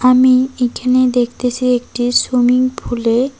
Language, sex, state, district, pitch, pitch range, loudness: Bengali, female, West Bengal, Cooch Behar, 250 Hz, 245-255 Hz, -14 LUFS